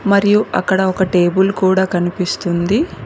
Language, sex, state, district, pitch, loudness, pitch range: Telugu, female, Telangana, Mahabubabad, 190 Hz, -15 LUFS, 175-195 Hz